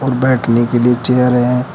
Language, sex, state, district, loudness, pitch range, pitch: Hindi, male, Uttar Pradesh, Shamli, -13 LUFS, 120-125 Hz, 125 Hz